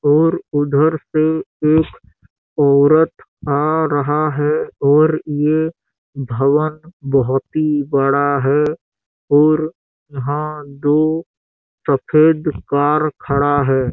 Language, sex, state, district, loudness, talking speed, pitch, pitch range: Hindi, male, Chhattisgarh, Bastar, -16 LUFS, 95 wpm, 145 Hz, 140-155 Hz